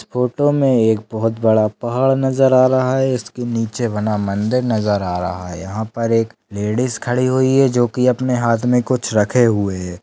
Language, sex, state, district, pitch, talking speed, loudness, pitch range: Hindi, male, Maharashtra, Solapur, 120 Hz, 205 wpm, -17 LUFS, 105-130 Hz